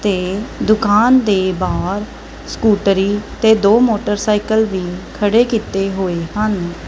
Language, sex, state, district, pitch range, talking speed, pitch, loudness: Punjabi, female, Punjab, Kapurthala, 195-220 Hz, 115 wpm, 205 Hz, -15 LUFS